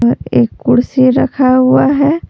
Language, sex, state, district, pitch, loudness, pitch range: Hindi, female, Jharkhand, Palamu, 255 Hz, -11 LUFS, 245-270 Hz